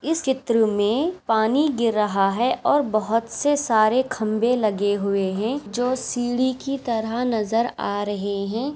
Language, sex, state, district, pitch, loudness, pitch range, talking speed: Hindi, female, Maharashtra, Aurangabad, 230 Hz, -22 LUFS, 215-255 Hz, 155 wpm